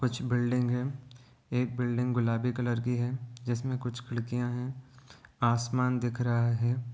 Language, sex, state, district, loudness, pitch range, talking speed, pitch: Hindi, male, Bihar, Gopalganj, -31 LUFS, 120-125 Hz, 155 wpm, 125 Hz